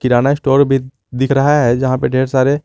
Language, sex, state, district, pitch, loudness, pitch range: Hindi, male, Jharkhand, Garhwa, 135 Hz, -14 LUFS, 130-140 Hz